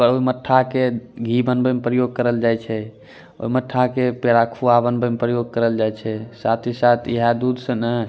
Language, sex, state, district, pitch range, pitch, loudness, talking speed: Angika, male, Bihar, Bhagalpur, 115-125 Hz, 120 Hz, -19 LUFS, 215 wpm